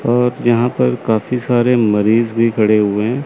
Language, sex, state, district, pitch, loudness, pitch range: Hindi, male, Chandigarh, Chandigarh, 120 Hz, -15 LUFS, 110-125 Hz